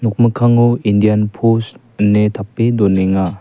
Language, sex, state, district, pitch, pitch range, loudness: Garo, male, Meghalaya, West Garo Hills, 105 Hz, 105-115 Hz, -14 LUFS